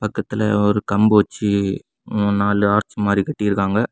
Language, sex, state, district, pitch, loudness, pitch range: Tamil, male, Tamil Nadu, Kanyakumari, 105 Hz, -19 LUFS, 100-105 Hz